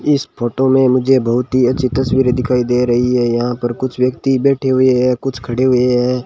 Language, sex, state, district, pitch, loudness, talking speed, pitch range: Hindi, male, Rajasthan, Bikaner, 125 Hz, -15 LUFS, 220 wpm, 125-130 Hz